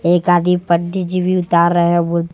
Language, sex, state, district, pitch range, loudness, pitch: Hindi, male, Bihar, West Champaran, 170-180 Hz, -15 LUFS, 175 Hz